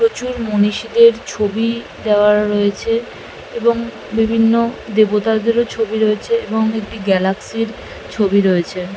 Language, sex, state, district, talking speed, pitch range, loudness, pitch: Bengali, female, West Bengal, Malda, 105 wpm, 210-230 Hz, -16 LUFS, 220 Hz